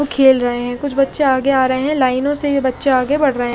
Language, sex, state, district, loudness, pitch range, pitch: Hindi, female, Odisha, Khordha, -15 LUFS, 255-285 Hz, 270 Hz